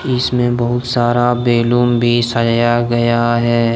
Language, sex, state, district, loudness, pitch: Hindi, male, Jharkhand, Deoghar, -14 LUFS, 120 Hz